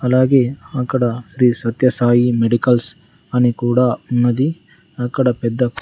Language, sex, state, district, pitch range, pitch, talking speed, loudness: Telugu, male, Andhra Pradesh, Sri Satya Sai, 120-130 Hz, 125 Hz, 105 wpm, -17 LUFS